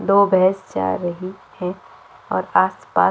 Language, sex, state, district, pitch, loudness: Hindi, female, Chhattisgarh, Jashpur, 185 Hz, -20 LUFS